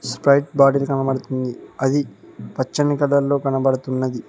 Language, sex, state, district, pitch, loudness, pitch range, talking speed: Telugu, male, Telangana, Mahabubabad, 135 Hz, -19 LUFS, 130-140 Hz, 110 wpm